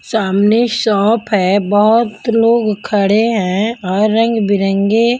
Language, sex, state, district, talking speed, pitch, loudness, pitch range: Hindi, female, Punjab, Kapurthala, 115 wpm, 215 Hz, -13 LUFS, 200-230 Hz